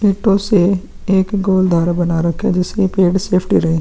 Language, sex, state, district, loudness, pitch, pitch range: Hindi, male, Bihar, Vaishali, -15 LUFS, 185 Hz, 175-195 Hz